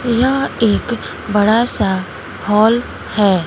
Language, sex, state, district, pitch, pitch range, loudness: Hindi, female, Bihar, West Champaran, 215 Hz, 200-235 Hz, -16 LUFS